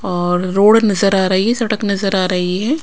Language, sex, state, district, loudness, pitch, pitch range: Hindi, female, Punjab, Pathankot, -15 LUFS, 195 Hz, 185-210 Hz